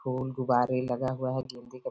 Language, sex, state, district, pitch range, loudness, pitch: Hindi, female, Chhattisgarh, Sarguja, 125-130 Hz, -30 LUFS, 130 Hz